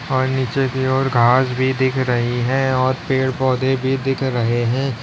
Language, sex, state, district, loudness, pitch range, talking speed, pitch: Hindi, male, Uttar Pradesh, Lalitpur, -18 LUFS, 125-130 Hz, 190 wpm, 130 Hz